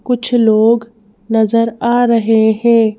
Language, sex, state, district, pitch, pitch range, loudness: Hindi, female, Madhya Pradesh, Bhopal, 230 Hz, 220-235 Hz, -12 LUFS